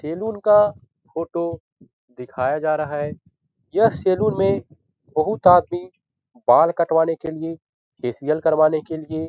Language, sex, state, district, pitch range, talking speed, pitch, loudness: Hindi, male, Bihar, Jahanabad, 155-185 Hz, 135 wpm, 160 Hz, -20 LUFS